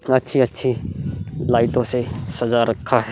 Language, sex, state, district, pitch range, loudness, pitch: Hindi, male, Goa, North and South Goa, 115-130 Hz, -21 LUFS, 125 Hz